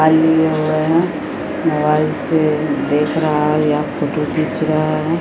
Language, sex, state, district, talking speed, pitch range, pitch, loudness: Maithili, female, Bihar, Samastipur, 150 wpm, 150-160 Hz, 155 Hz, -16 LUFS